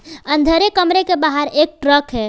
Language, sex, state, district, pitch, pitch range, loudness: Hindi, female, Jharkhand, Palamu, 310 Hz, 290-345 Hz, -15 LUFS